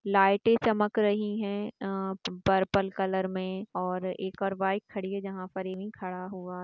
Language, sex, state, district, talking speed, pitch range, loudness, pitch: Hindi, female, Bihar, Kishanganj, 170 wpm, 190-205 Hz, -30 LUFS, 195 Hz